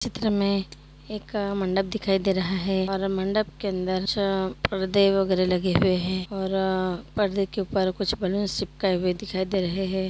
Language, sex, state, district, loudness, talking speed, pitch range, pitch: Hindi, female, Uttar Pradesh, Jyotiba Phule Nagar, -25 LUFS, 185 wpm, 185-200 Hz, 190 Hz